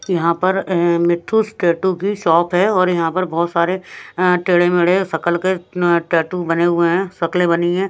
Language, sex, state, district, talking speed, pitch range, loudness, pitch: Hindi, female, Himachal Pradesh, Shimla, 160 wpm, 170-185 Hz, -17 LUFS, 175 Hz